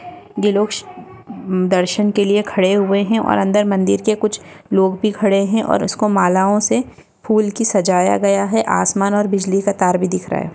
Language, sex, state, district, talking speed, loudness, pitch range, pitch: Hindi, female, Goa, North and South Goa, 200 wpm, -16 LUFS, 190-215 Hz, 200 Hz